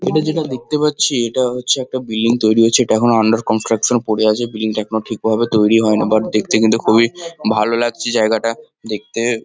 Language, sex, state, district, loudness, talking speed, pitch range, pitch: Bengali, male, West Bengal, North 24 Parganas, -16 LUFS, 190 wpm, 110-125 Hz, 115 Hz